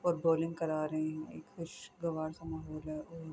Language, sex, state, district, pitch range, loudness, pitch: Urdu, female, Andhra Pradesh, Anantapur, 155-165 Hz, -37 LUFS, 160 Hz